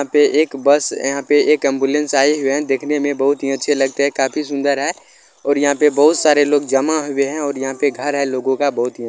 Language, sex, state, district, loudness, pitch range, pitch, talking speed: Hindi, male, Bihar, Jamui, -16 LUFS, 135-145 Hz, 140 Hz, 265 wpm